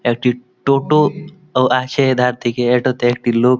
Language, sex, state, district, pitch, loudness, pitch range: Bengali, male, West Bengal, Malda, 125 Hz, -16 LUFS, 120-135 Hz